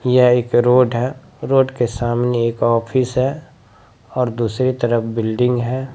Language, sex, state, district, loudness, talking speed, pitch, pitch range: Maithili, male, Bihar, Bhagalpur, -17 LUFS, 160 wpm, 125 Hz, 115-130 Hz